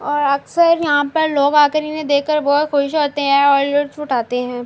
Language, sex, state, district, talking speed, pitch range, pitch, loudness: Urdu, female, Andhra Pradesh, Anantapur, 205 wpm, 280-300 Hz, 290 Hz, -16 LUFS